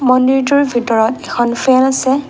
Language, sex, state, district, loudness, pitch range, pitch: Assamese, female, Assam, Kamrup Metropolitan, -13 LUFS, 240-265 Hz, 260 Hz